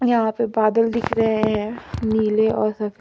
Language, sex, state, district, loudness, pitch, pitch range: Hindi, female, Jharkhand, Palamu, -20 LUFS, 220 Hz, 215-225 Hz